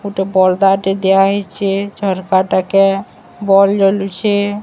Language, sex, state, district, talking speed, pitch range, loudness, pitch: Odia, male, Odisha, Sambalpur, 80 wpm, 195-200 Hz, -14 LUFS, 195 Hz